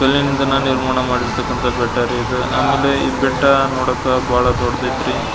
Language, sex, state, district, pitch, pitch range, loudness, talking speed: Kannada, male, Karnataka, Belgaum, 130 Hz, 125-135 Hz, -16 LUFS, 135 wpm